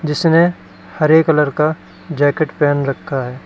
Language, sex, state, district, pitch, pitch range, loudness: Hindi, male, Uttar Pradesh, Lalitpur, 150 Hz, 145-160 Hz, -15 LUFS